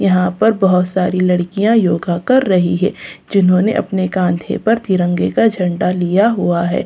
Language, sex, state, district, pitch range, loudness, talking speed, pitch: Hindi, female, Delhi, New Delhi, 180-205 Hz, -15 LUFS, 165 wpm, 185 Hz